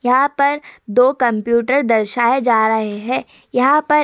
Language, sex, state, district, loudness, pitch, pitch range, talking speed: Hindi, female, Uttar Pradesh, Hamirpur, -16 LUFS, 250 Hz, 230-280 Hz, 165 wpm